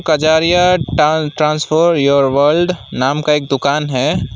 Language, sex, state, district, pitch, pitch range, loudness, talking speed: Hindi, male, West Bengal, Alipurduar, 150 Hz, 140-160 Hz, -14 LUFS, 135 wpm